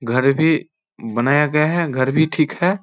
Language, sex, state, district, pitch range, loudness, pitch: Hindi, male, Bihar, Vaishali, 135-160 Hz, -18 LUFS, 150 Hz